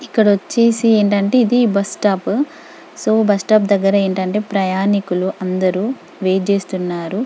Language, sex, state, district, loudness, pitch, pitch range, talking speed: Telugu, female, Telangana, Karimnagar, -16 LUFS, 200 Hz, 190-225 Hz, 105 wpm